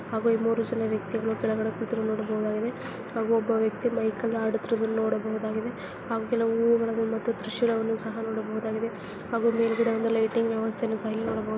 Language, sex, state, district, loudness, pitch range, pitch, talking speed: Kannada, female, Karnataka, Dakshina Kannada, -28 LUFS, 220-230 Hz, 225 Hz, 160 wpm